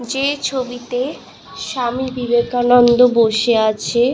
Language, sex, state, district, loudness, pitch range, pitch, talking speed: Bengali, female, West Bengal, Malda, -16 LUFS, 240-255 Hz, 245 Hz, 100 wpm